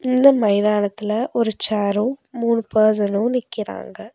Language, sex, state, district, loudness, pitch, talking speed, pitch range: Tamil, female, Tamil Nadu, Nilgiris, -19 LUFS, 220 Hz, 100 wpm, 210-240 Hz